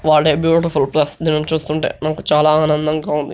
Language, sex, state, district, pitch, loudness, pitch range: Telugu, male, Telangana, Nalgonda, 155 Hz, -16 LUFS, 150-155 Hz